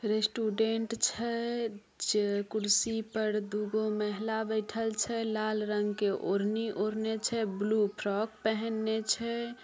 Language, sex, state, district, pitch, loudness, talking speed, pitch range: Maithili, female, Bihar, Samastipur, 220 Hz, -32 LUFS, 120 wpm, 210-225 Hz